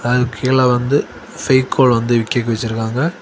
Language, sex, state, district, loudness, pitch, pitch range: Tamil, male, Tamil Nadu, Kanyakumari, -16 LUFS, 125 Hz, 120-130 Hz